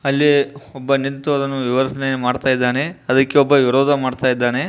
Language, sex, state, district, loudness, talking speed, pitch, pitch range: Kannada, male, Karnataka, Bijapur, -17 LUFS, 130 wpm, 135 Hz, 130-140 Hz